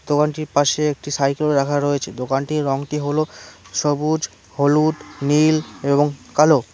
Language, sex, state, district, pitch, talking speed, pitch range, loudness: Bengali, male, West Bengal, Cooch Behar, 145 Hz, 125 wpm, 140-150 Hz, -20 LUFS